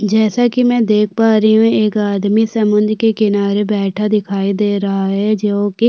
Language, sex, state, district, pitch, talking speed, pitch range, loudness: Hindi, female, Uttarakhand, Tehri Garhwal, 210 Hz, 205 wpm, 205-220 Hz, -14 LUFS